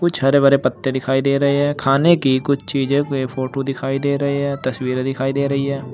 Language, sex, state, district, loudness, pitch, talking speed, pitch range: Hindi, male, Uttar Pradesh, Saharanpur, -18 LUFS, 135 Hz, 220 wpm, 135-140 Hz